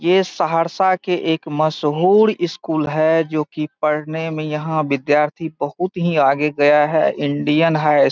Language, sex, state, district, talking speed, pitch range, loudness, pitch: Hindi, male, Bihar, Saharsa, 160 wpm, 150-165 Hz, -18 LUFS, 155 Hz